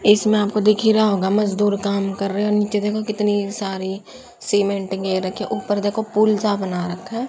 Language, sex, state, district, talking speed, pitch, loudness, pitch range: Hindi, female, Haryana, Charkhi Dadri, 215 wpm, 205 Hz, -20 LUFS, 195-210 Hz